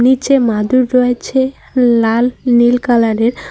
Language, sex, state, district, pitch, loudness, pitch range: Bengali, female, West Bengal, Cooch Behar, 245 Hz, -13 LUFS, 235-255 Hz